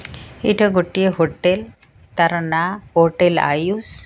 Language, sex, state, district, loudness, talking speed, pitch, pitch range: Odia, female, Odisha, Sambalpur, -18 LUFS, 105 wpm, 170 Hz, 160-190 Hz